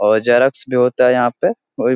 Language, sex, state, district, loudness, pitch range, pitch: Hindi, male, Bihar, Supaul, -15 LUFS, 120-125 Hz, 125 Hz